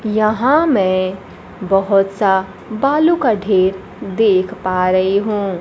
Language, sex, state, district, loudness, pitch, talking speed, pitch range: Hindi, female, Bihar, Kaimur, -15 LUFS, 195 Hz, 115 wpm, 190-215 Hz